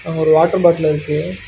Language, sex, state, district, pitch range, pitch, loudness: Tamil, male, Karnataka, Bangalore, 155-170 Hz, 160 Hz, -15 LUFS